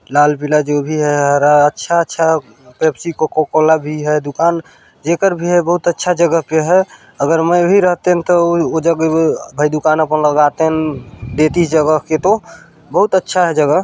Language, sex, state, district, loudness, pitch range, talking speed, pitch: Chhattisgarhi, male, Chhattisgarh, Balrampur, -14 LUFS, 150-170 Hz, 165 wpm, 160 Hz